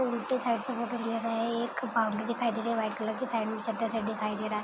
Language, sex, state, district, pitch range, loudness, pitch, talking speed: Hindi, female, Chhattisgarh, Kabirdham, 220-235 Hz, -31 LUFS, 230 Hz, 270 wpm